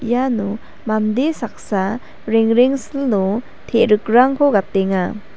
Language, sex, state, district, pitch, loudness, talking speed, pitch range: Garo, female, Meghalaya, South Garo Hills, 225 Hz, -17 LUFS, 65 wpm, 205-250 Hz